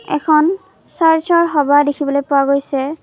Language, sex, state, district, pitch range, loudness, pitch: Assamese, female, Assam, Kamrup Metropolitan, 280-325 Hz, -14 LUFS, 295 Hz